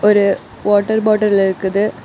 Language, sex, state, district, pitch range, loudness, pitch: Tamil, female, Tamil Nadu, Kanyakumari, 195-210 Hz, -15 LUFS, 205 Hz